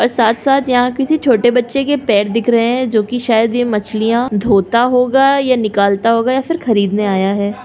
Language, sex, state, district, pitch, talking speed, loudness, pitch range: Hindi, female, Uttar Pradesh, Jyotiba Phule Nagar, 235 Hz, 210 wpm, -14 LUFS, 215-255 Hz